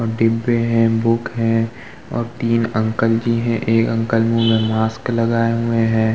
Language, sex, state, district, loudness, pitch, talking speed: Hindi, male, Uttar Pradesh, Muzaffarnagar, -18 LUFS, 115 Hz, 165 wpm